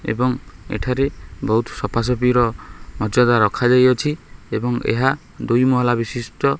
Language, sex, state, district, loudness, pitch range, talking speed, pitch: Odia, male, Odisha, Khordha, -19 LUFS, 115-130 Hz, 120 wpm, 125 Hz